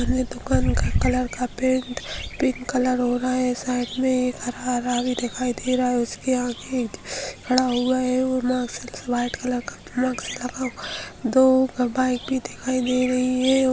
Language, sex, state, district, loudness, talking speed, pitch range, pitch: Hindi, female, Bihar, Sitamarhi, -23 LUFS, 190 wpm, 245-255 Hz, 255 Hz